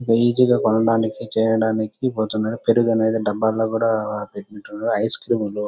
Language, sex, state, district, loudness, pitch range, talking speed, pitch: Telugu, male, Andhra Pradesh, Chittoor, -20 LUFS, 110-115 Hz, 115 wpm, 110 Hz